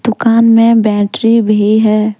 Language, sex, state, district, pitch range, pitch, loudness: Hindi, female, Jharkhand, Deoghar, 215-230 Hz, 220 Hz, -10 LUFS